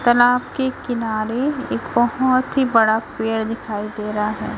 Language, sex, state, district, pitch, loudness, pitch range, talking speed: Hindi, female, Chhattisgarh, Raipur, 235 Hz, -20 LUFS, 220-255 Hz, 155 wpm